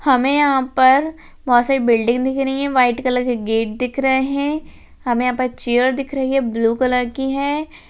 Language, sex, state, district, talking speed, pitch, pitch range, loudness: Hindi, female, Rajasthan, Churu, 230 wpm, 260 Hz, 245-275 Hz, -18 LUFS